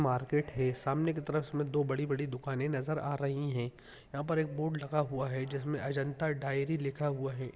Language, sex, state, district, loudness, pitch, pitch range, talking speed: Hindi, male, Bihar, Jahanabad, -34 LUFS, 140 Hz, 135-150 Hz, 205 wpm